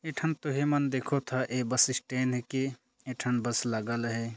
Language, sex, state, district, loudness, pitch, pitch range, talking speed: Chhattisgarhi, male, Chhattisgarh, Jashpur, -30 LUFS, 130 Hz, 120-135 Hz, 110 wpm